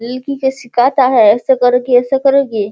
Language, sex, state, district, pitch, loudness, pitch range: Hindi, female, Bihar, Sitamarhi, 255 Hz, -12 LUFS, 245-275 Hz